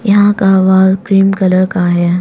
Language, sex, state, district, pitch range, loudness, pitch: Hindi, female, Arunachal Pradesh, Longding, 185-195 Hz, -10 LUFS, 190 Hz